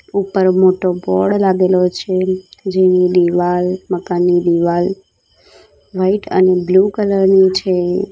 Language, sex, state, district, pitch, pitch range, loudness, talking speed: Gujarati, female, Gujarat, Valsad, 185 Hz, 180-190 Hz, -14 LUFS, 110 wpm